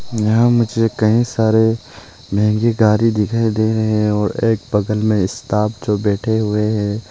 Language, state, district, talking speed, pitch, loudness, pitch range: Hindi, Arunachal Pradesh, Papum Pare, 160 wpm, 110 Hz, -16 LUFS, 105-115 Hz